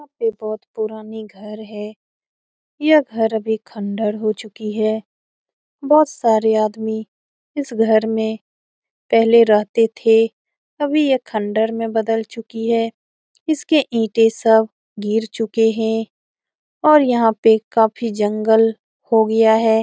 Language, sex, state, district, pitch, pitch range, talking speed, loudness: Hindi, female, Bihar, Saran, 225 Hz, 220-230 Hz, 130 wpm, -17 LUFS